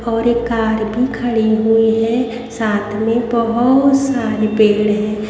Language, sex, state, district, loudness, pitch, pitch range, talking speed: Hindi, female, Haryana, Rohtak, -15 LUFS, 225 Hz, 220-240 Hz, 145 wpm